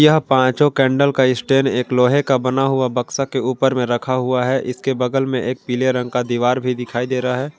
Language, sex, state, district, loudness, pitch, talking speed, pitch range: Hindi, male, Jharkhand, Ranchi, -18 LUFS, 130 Hz, 235 wpm, 125-135 Hz